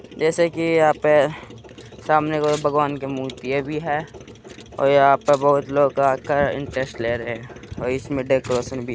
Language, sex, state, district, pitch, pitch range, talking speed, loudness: Hindi, male, Uttar Pradesh, Muzaffarnagar, 140 Hz, 125-150 Hz, 175 wpm, -20 LUFS